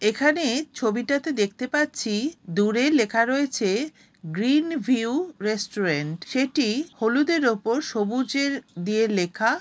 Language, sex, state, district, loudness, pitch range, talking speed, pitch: Bengali, female, West Bengal, Jalpaiguri, -24 LUFS, 215-285 Hz, 105 wpm, 245 Hz